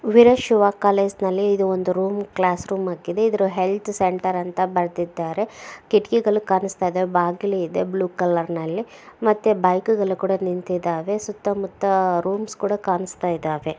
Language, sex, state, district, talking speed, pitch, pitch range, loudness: Kannada, female, Karnataka, Bellary, 145 wpm, 190 Hz, 180-205 Hz, -21 LUFS